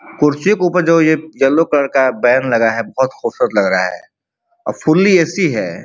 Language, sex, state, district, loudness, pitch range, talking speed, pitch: Bhojpuri, male, Uttar Pradesh, Ghazipur, -14 LUFS, 130-180 Hz, 205 wpm, 155 Hz